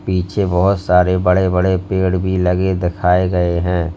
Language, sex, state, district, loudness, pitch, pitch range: Hindi, male, Uttar Pradesh, Lalitpur, -16 LUFS, 90 Hz, 90-95 Hz